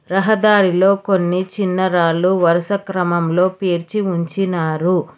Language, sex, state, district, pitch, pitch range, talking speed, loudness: Telugu, female, Telangana, Hyderabad, 185 Hz, 175-195 Hz, 90 wpm, -16 LUFS